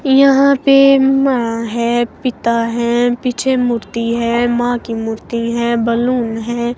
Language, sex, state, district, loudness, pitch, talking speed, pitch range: Hindi, female, Himachal Pradesh, Shimla, -14 LUFS, 240 Hz, 135 wpm, 235-255 Hz